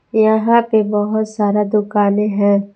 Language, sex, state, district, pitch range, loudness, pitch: Hindi, female, Jharkhand, Palamu, 205-220 Hz, -15 LUFS, 210 Hz